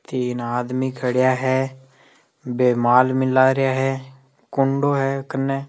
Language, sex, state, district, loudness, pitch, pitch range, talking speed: Hindi, male, Rajasthan, Nagaur, -20 LUFS, 130 Hz, 125-135 Hz, 125 wpm